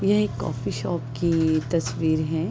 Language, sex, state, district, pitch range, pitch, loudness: Hindi, female, Uttar Pradesh, Deoria, 155-170 Hz, 160 Hz, -24 LUFS